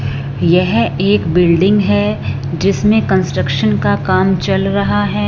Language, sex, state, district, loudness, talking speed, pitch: Hindi, female, Punjab, Fazilka, -14 LUFS, 125 wpm, 165 Hz